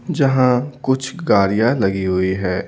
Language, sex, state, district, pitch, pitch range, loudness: Hindi, male, Bihar, Patna, 115 Hz, 95-130 Hz, -17 LUFS